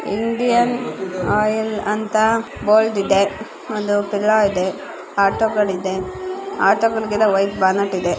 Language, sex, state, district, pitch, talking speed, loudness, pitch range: Kannada, female, Karnataka, Bijapur, 210 Hz, 95 wpm, -18 LUFS, 195-220 Hz